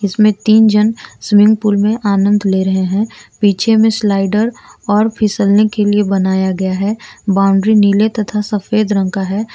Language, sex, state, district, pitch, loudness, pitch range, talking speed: Hindi, female, Jharkhand, Garhwa, 210 Hz, -13 LUFS, 195-215 Hz, 170 wpm